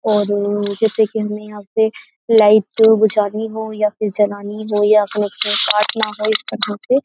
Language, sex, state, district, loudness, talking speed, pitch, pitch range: Hindi, female, Uttar Pradesh, Jyotiba Phule Nagar, -16 LUFS, 170 wpm, 210 Hz, 210-220 Hz